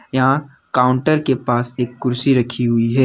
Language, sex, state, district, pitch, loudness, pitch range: Hindi, male, Jharkhand, Deoghar, 125 Hz, -18 LUFS, 120-135 Hz